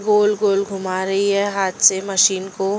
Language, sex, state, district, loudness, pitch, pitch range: Hindi, female, Delhi, New Delhi, -18 LUFS, 195 Hz, 190-205 Hz